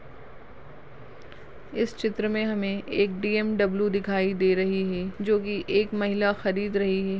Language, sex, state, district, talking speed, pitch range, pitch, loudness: Hindi, female, Goa, North and South Goa, 150 wpm, 195-210 Hz, 200 Hz, -26 LUFS